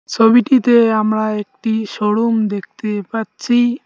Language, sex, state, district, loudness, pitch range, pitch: Bengali, male, West Bengal, Cooch Behar, -16 LUFS, 215-240 Hz, 225 Hz